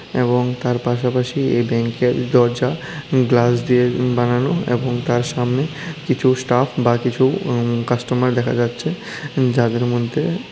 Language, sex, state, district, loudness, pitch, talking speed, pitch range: Bengali, male, Tripura, West Tripura, -18 LUFS, 125 Hz, 120 wpm, 120-130 Hz